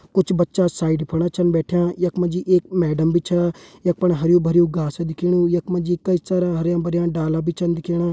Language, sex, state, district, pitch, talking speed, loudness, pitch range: Hindi, male, Uttarakhand, Uttarkashi, 175 Hz, 205 wpm, -20 LUFS, 170-180 Hz